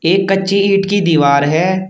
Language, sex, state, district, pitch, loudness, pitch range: Hindi, male, Uttar Pradesh, Shamli, 190 Hz, -13 LUFS, 165-195 Hz